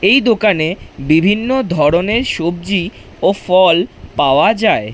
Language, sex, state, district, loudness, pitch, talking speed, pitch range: Bengali, male, West Bengal, Jhargram, -14 LUFS, 185 Hz, 110 wpm, 170-215 Hz